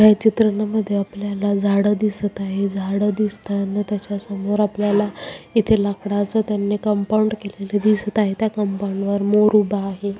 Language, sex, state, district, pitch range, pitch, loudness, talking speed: Marathi, female, Maharashtra, Chandrapur, 200-210 Hz, 205 Hz, -20 LUFS, 145 wpm